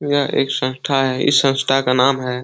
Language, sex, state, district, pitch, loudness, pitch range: Hindi, male, Uttar Pradesh, Etah, 135 Hz, -17 LUFS, 130-140 Hz